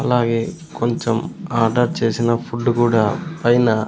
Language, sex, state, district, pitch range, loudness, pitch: Telugu, male, Andhra Pradesh, Sri Satya Sai, 115-120 Hz, -19 LUFS, 120 Hz